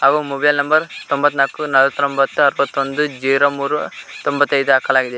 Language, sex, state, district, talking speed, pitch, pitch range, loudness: Kannada, male, Karnataka, Koppal, 115 wpm, 140 Hz, 135-145 Hz, -16 LUFS